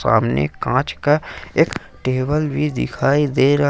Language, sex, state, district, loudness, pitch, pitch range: Hindi, male, Jharkhand, Ranchi, -19 LUFS, 140 Hz, 130-150 Hz